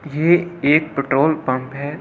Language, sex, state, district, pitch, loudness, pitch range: Hindi, male, Delhi, New Delhi, 150 Hz, -18 LUFS, 140-160 Hz